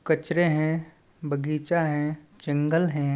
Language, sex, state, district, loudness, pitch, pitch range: Chhattisgarhi, male, Chhattisgarh, Balrampur, -26 LUFS, 155 Hz, 150-165 Hz